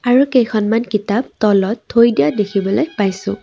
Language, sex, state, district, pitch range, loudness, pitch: Assamese, female, Assam, Sonitpur, 200-235 Hz, -15 LUFS, 210 Hz